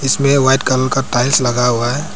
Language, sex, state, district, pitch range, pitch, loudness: Hindi, male, Arunachal Pradesh, Papum Pare, 125-135 Hz, 130 Hz, -14 LUFS